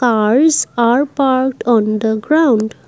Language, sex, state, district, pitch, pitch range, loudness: English, female, Assam, Kamrup Metropolitan, 240 Hz, 220-275 Hz, -14 LUFS